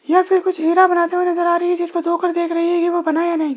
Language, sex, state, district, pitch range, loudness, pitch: Hindi, male, Rajasthan, Jaipur, 340-355 Hz, -17 LUFS, 345 Hz